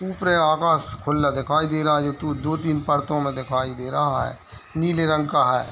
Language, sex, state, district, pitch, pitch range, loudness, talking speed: Hindi, male, Chhattisgarh, Bilaspur, 150 Hz, 140-155 Hz, -22 LUFS, 220 wpm